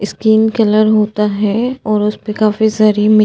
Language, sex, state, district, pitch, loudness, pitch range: Hindi, female, Uttar Pradesh, Jyotiba Phule Nagar, 215 Hz, -13 LUFS, 210-220 Hz